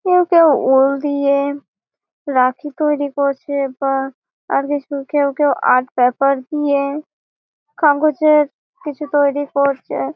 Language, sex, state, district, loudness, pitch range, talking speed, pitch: Bengali, female, West Bengal, Malda, -16 LUFS, 275-295 Hz, 110 wpm, 285 Hz